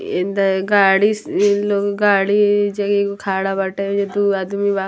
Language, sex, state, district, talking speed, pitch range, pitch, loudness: Bhojpuri, female, Bihar, Muzaffarpur, 195 wpm, 195-205 Hz, 200 Hz, -17 LUFS